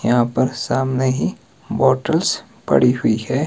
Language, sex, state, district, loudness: Hindi, male, Himachal Pradesh, Shimla, -18 LUFS